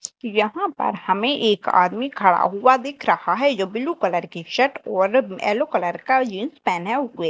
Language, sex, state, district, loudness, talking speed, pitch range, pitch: Hindi, female, Madhya Pradesh, Dhar, -21 LUFS, 180 wpm, 185-265 Hz, 220 Hz